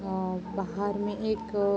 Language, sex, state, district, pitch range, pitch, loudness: Hindi, female, Uttar Pradesh, Jalaun, 190-210 Hz, 200 Hz, -31 LUFS